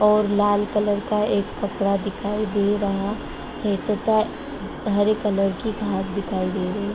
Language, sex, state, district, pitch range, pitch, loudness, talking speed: Hindi, female, Bihar, Sitamarhi, 200-210 Hz, 205 Hz, -23 LUFS, 165 wpm